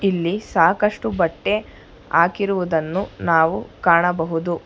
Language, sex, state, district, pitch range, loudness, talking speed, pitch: Kannada, female, Karnataka, Bangalore, 165-200 Hz, -19 LUFS, 75 wpm, 175 Hz